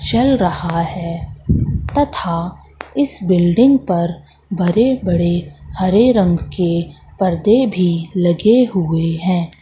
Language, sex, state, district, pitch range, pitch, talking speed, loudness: Hindi, female, Madhya Pradesh, Katni, 170-220 Hz, 180 Hz, 105 wpm, -16 LUFS